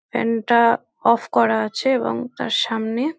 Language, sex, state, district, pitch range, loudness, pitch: Bengali, female, West Bengal, North 24 Parganas, 225-245 Hz, -20 LUFS, 235 Hz